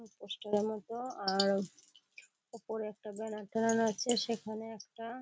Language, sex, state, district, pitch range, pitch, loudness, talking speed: Bengali, female, West Bengal, Kolkata, 210-230 Hz, 220 Hz, -35 LUFS, 150 wpm